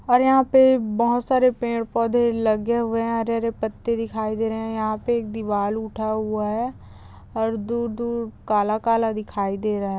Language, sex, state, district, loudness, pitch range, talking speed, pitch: Hindi, female, Chhattisgarh, Bastar, -22 LUFS, 215-235 Hz, 190 wpm, 225 Hz